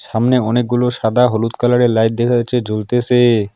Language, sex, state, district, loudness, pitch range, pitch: Bengali, male, West Bengal, Alipurduar, -15 LUFS, 110-125 Hz, 120 Hz